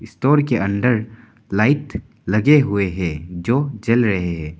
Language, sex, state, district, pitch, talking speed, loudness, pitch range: Hindi, male, Arunachal Pradesh, Papum Pare, 110 Hz, 145 wpm, -18 LUFS, 100-125 Hz